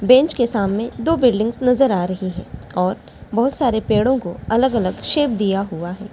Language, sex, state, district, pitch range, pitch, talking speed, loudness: Hindi, female, Delhi, New Delhi, 195-255 Hz, 225 Hz, 175 wpm, -19 LUFS